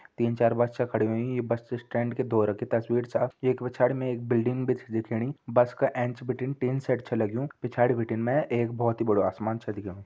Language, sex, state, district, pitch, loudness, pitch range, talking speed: Hindi, male, Uttarakhand, Tehri Garhwal, 120 Hz, -28 LUFS, 115-125 Hz, 235 wpm